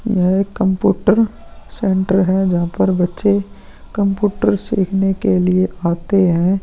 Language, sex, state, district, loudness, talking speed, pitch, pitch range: Hindi, male, Bihar, Vaishali, -16 LUFS, 120 wpm, 195 Hz, 185-200 Hz